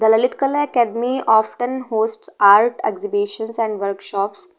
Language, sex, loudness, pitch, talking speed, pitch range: English, female, -18 LUFS, 220 Hz, 130 wpm, 205-245 Hz